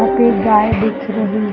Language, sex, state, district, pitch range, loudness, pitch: Hindi, male, Bihar, East Champaran, 165-215 Hz, -15 LUFS, 210 Hz